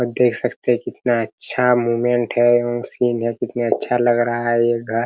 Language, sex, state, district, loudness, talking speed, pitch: Hindi, male, Bihar, Araria, -19 LUFS, 215 wpm, 120 Hz